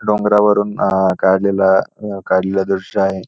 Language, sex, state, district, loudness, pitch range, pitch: Marathi, male, Maharashtra, Pune, -15 LUFS, 95-105 Hz, 95 Hz